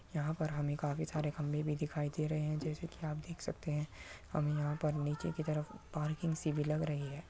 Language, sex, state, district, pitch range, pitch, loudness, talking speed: Hindi, male, Uttar Pradesh, Muzaffarnagar, 150-155 Hz, 150 Hz, -38 LUFS, 230 wpm